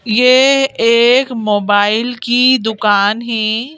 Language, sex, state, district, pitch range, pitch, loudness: Hindi, female, Madhya Pradesh, Bhopal, 215-250 Hz, 230 Hz, -12 LUFS